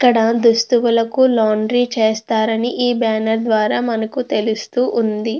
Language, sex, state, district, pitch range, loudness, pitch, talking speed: Telugu, female, Andhra Pradesh, Krishna, 220-240 Hz, -16 LUFS, 230 Hz, 110 wpm